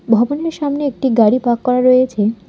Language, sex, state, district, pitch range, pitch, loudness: Bengali, female, West Bengal, Alipurduar, 230-270 Hz, 250 Hz, -15 LUFS